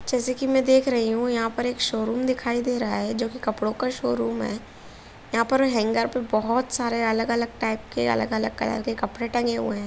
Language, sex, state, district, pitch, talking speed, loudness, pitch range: Bhojpuri, female, Uttar Pradesh, Deoria, 235 Hz, 220 wpm, -24 LUFS, 215-250 Hz